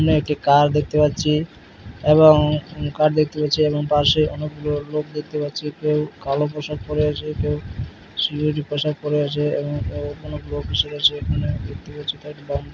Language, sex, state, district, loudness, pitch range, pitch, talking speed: Bengali, male, West Bengal, Malda, -20 LUFS, 145-150 Hz, 150 Hz, 150 wpm